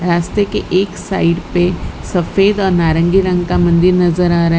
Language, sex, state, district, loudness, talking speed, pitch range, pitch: Hindi, female, Gujarat, Valsad, -14 LUFS, 195 wpm, 170-190 Hz, 180 Hz